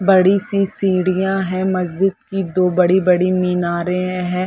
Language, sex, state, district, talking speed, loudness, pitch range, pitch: Hindi, female, Chhattisgarh, Bilaspur, 145 wpm, -17 LUFS, 180-195 Hz, 185 Hz